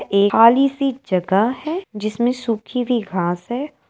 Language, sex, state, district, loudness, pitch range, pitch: Hindi, female, Uttar Pradesh, Etah, -19 LUFS, 200-255 Hz, 230 Hz